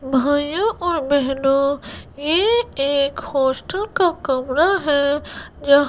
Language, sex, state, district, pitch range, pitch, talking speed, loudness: Hindi, female, Gujarat, Gandhinagar, 275-350 Hz, 285 Hz, 100 wpm, -19 LUFS